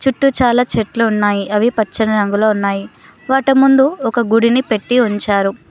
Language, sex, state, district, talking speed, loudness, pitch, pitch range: Telugu, female, Telangana, Mahabubabad, 145 wpm, -14 LUFS, 225 Hz, 205-250 Hz